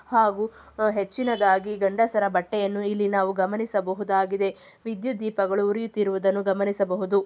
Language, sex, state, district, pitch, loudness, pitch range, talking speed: Kannada, female, Karnataka, Chamarajanagar, 200 Hz, -24 LUFS, 195-215 Hz, 90 wpm